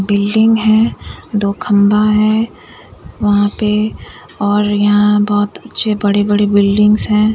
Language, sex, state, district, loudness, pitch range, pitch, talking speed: Hindi, female, Bihar, Katihar, -13 LUFS, 205-215 Hz, 210 Hz, 115 wpm